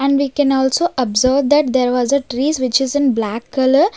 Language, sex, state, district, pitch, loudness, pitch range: English, female, Punjab, Kapurthala, 265 Hz, -16 LUFS, 255-285 Hz